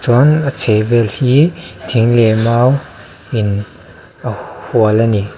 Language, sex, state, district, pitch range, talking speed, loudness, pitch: Mizo, male, Mizoram, Aizawl, 105-125 Hz, 135 wpm, -13 LUFS, 115 Hz